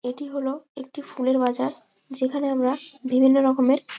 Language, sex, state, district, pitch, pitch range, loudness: Bengali, female, West Bengal, Malda, 265 Hz, 255-280 Hz, -23 LUFS